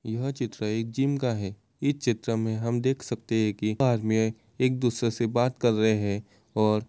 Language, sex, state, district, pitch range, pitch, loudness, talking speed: Hindi, male, Uttar Pradesh, Muzaffarnagar, 110-125 Hz, 115 Hz, -27 LUFS, 220 wpm